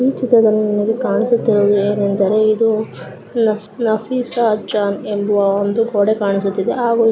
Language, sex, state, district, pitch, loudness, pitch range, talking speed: Kannada, female, Karnataka, Shimoga, 215 Hz, -16 LUFS, 205-230 Hz, 120 wpm